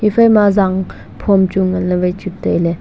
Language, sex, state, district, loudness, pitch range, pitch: Wancho, male, Arunachal Pradesh, Longding, -14 LUFS, 180-205 Hz, 190 Hz